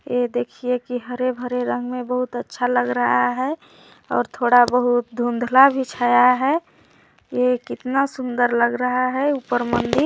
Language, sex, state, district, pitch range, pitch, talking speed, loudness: Hindi, female, Chhattisgarh, Bilaspur, 245-255 Hz, 250 Hz, 165 wpm, -20 LUFS